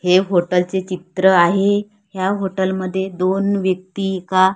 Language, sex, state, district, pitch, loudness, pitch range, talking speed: Marathi, female, Maharashtra, Gondia, 190 Hz, -18 LUFS, 185-195 Hz, 145 wpm